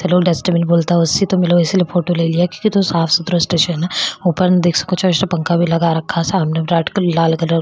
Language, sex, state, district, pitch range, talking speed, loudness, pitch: Marwari, female, Rajasthan, Churu, 165-180 Hz, 205 wpm, -15 LUFS, 175 Hz